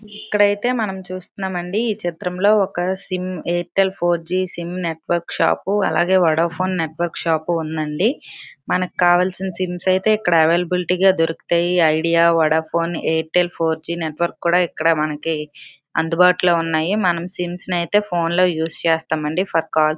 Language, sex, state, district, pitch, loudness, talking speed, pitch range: Telugu, female, Andhra Pradesh, Srikakulam, 175 Hz, -19 LUFS, 135 wpm, 165-185 Hz